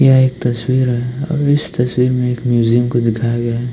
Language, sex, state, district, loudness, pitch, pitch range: Hindi, male, Uttarakhand, Tehri Garhwal, -15 LUFS, 125 Hz, 120-130 Hz